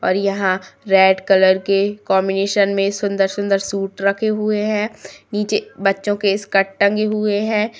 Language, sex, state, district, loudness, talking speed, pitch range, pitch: Kumaoni, female, Uttarakhand, Tehri Garhwal, -18 LUFS, 145 wpm, 195-210 Hz, 200 Hz